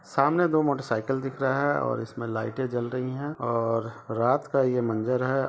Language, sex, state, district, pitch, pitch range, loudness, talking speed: Hindi, male, Bihar, Begusarai, 130 Hz, 115-135 Hz, -27 LUFS, 205 wpm